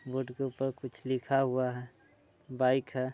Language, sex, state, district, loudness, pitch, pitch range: Hindi, male, Bihar, Muzaffarpur, -32 LUFS, 130 Hz, 125-135 Hz